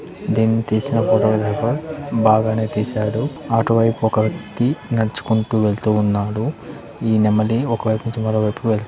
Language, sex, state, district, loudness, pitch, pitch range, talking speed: Telugu, male, Andhra Pradesh, Anantapur, -19 LUFS, 110 Hz, 110-115 Hz, 130 wpm